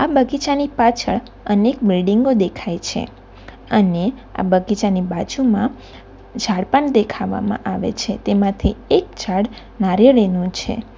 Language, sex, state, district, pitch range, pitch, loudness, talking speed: Gujarati, female, Gujarat, Valsad, 195-260 Hz, 225 Hz, -18 LUFS, 110 wpm